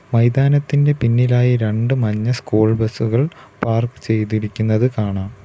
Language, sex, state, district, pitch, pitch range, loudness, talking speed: Malayalam, male, Kerala, Kollam, 115 Hz, 110-125 Hz, -17 LUFS, 100 wpm